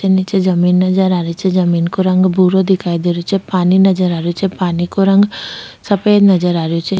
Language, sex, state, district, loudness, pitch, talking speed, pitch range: Rajasthani, female, Rajasthan, Churu, -13 LUFS, 185 Hz, 240 wpm, 175-195 Hz